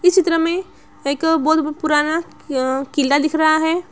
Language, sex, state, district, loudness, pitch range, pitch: Hindi, female, Bihar, Araria, -18 LUFS, 295-330 Hz, 315 Hz